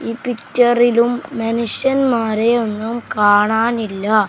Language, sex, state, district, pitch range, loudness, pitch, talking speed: Malayalam, male, Kerala, Kasaragod, 220-240 Hz, -16 LUFS, 230 Hz, 70 wpm